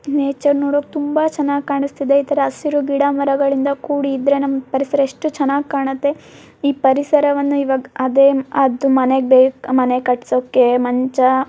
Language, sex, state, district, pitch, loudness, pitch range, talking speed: Kannada, female, Karnataka, Mysore, 280 Hz, -16 LUFS, 265-285 Hz, 130 wpm